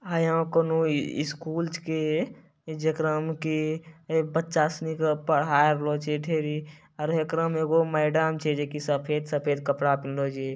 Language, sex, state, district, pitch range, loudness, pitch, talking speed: Maithili, male, Bihar, Bhagalpur, 150-160 Hz, -27 LUFS, 155 Hz, 155 wpm